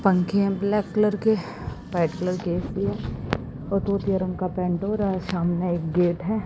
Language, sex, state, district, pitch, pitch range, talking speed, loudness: Hindi, female, Haryana, Jhajjar, 185 Hz, 175-200 Hz, 140 wpm, -25 LUFS